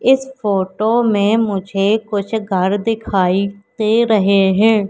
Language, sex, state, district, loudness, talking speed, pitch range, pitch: Hindi, female, Madhya Pradesh, Katni, -16 LUFS, 120 wpm, 195-225 Hz, 210 Hz